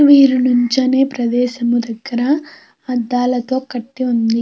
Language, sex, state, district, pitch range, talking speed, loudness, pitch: Telugu, female, Andhra Pradesh, Krishna, 240-260 Hz, 95 wpm, -16 LUFS, 250 Hz